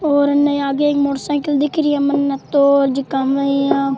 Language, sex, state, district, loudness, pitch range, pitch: Rajasthani, male, Rajasthan, Churu, -16 LUFS, 275-290 Hz, 280 Hz